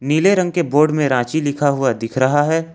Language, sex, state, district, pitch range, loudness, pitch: Hindi, male, Jharkhand, Ranchi, 135-160 Hz, -17 LUFS, 145 Hz